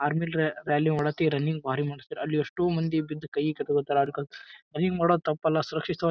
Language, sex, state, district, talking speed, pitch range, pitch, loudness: Kannada, male, Karnataka, Bijapur, 175 wpm, 145-160 Hz, 155 Hz, -27 LUFS